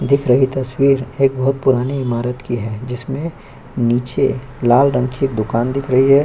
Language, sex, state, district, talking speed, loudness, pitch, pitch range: Hindi, male, Chhattisgarh, Korba, 180 wpm, -17 LUFS, 130 Hz, 125-135 Hz